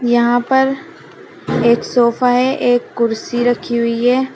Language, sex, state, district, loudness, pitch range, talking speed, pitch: Hindi, female, Uttar Pradesh, Shamli, -15 LUFS, 235-255 Hz, 140 wpm, 245 Hz